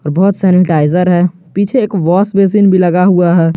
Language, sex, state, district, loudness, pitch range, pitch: Hindi, male, Jharkhand, Garhwa, -11 LUFS, 175-195 Hz, 180 Hz